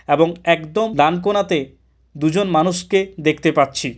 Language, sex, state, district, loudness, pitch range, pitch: Bengali, male, West Bengal, Kolkata, -18 LUFS, 155-195 Hz, 165 Hz